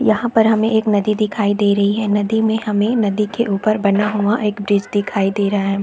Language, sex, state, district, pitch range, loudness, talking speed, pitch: Hindi, female, Chhattisgarh, Bilaspur, 205-220 Hz, -17 LUFS, 225 wpm, 210 Hz